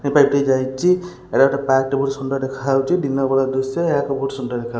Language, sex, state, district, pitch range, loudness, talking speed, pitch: Odia, male, Odisha, Khordha, 135-140 Hz, -19 LUFS, 250 wpm, 135 Hz